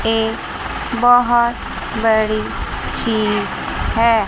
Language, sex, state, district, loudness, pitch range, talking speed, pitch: Hindi, male, Chandigarh, Chandigarh, -18 LUFS, 220-235 Hz, 70 wpm, 225 Hz